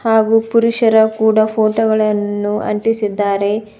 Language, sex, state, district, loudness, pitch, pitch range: Kannada, female, Karnataka, Bidar, -15 LUFS, 220 Hz, 210-225 Hz